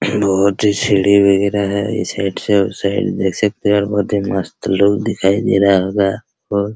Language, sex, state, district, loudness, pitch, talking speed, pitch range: Hindi, male, Bihar, Araria, -15 LUFS, 100 Hz, 215 wpm, 100-105 Hz